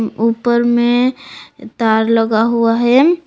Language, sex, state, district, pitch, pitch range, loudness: Hindi, female, Jharkhand, Palamu, 235 Hz, 225-250 Hz, -14 LUFS